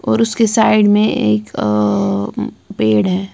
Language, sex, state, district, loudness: Hindi, female, Punjab, Kapurthala, -15 LUFS